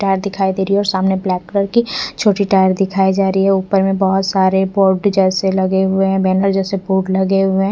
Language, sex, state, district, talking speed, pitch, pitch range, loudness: Hindi, female, Punjab, Fazilka, 240 wpm, 195 Hz, 190-195 Hz, -15 LUFS